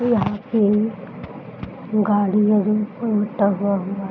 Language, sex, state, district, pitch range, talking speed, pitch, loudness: Hindi, female, Bihar, Araria, 200-215 Hz, 115 wpm, 210 Hz, -20 LUFS